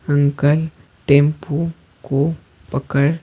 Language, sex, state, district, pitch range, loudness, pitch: Hindi, male, Bihar, Patna, 140-155 Hz, -18 LUFS, 145 Hz